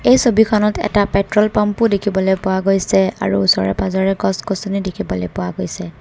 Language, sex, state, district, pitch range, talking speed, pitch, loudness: Assamese, female, Assam, Kamrup Metropolitan, 165-210 Hz, 160 wpm, 195 Hz, -16 LUFS